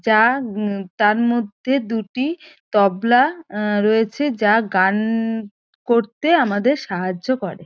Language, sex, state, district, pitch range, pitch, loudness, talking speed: Bengali, female, West Bengal, North 24 Parganas, 205-255 Hz, 225 Hz, -19 LUFS, 110 wpm